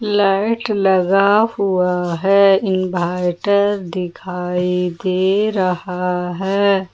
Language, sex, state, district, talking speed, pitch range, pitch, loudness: Hindi, female, Jharkhand, Ranchi, 80 wpm, 180-200 Hz, 190 Hz, -17 LUFS